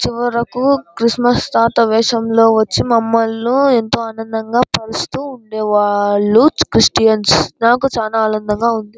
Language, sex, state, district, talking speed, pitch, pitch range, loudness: Telugu, male, Andhra Pradesh, Anantapur, 105 wpm, 230 Hz, 220-240 Hz, -14 LUFS